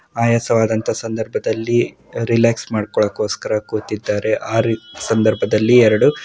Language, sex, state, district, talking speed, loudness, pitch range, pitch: Kannada, male, Karnataka, Mysore, 75 wpm, -17 LUFS, 110-115 Hz, 110 Hz